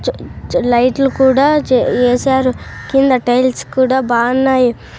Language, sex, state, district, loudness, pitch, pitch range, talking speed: Telugu, female, Andhra Pradesh, Sri Satya Sai, -13 LUFS, 260 Hz, 245-265 Hz, 120 wpm